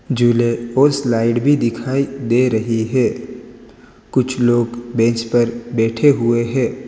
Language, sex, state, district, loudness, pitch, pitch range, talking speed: Hindi, male, Gujarat, Valsad, -17 LUFS, 120 Hz, 115-130 Hz, 130 wpm